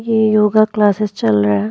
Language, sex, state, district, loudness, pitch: Hindi, female, Uttar Pradesh, Muzaffarnagar, -14 LUFS, 210 Hz